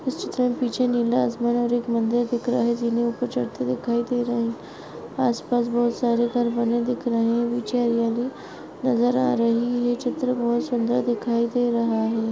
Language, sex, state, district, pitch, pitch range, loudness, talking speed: Hindi, female, Maharashtra, Sindhudurg, 240 Hz, 235-245 Hz, -23 LUFS, 195 wpm